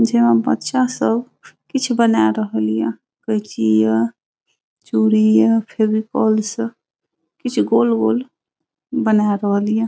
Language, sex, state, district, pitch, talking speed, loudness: Hindi, female, Bihar, Saharsa, 205 Hz, 125 wpm, -17 LUFS